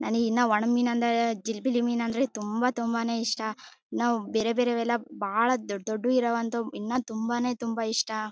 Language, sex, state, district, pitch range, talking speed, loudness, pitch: Kannada, female, Karnataka, Bellary, 225-240 Hz, 130 wpm, -27 LUFS, 230 Hz